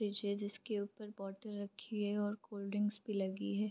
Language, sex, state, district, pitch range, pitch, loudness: Hindi, female, Bihar, Vaishali, 200-210 Hz, 205 Hz, -41 LUFS